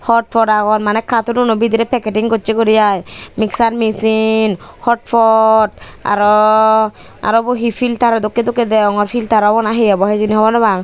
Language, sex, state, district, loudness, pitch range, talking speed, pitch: Chakma, female, Tripura, Dhalai, -13 LUFS, 215-230 Hz, 155 wpm, 220 Hz